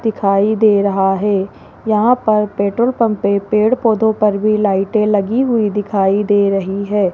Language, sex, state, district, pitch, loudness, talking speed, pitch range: Hindi, female, Rajasthan, Jaipur, 210 Hz, -15 LUFS, 170 wpm, 200-220 Hz